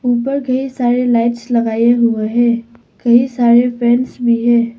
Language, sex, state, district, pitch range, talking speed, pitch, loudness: Hindi, female, Arunachal Pradesh, Papum Pare, 235-245 Hz, 150 wpm, 240 Hz, -14 LUFS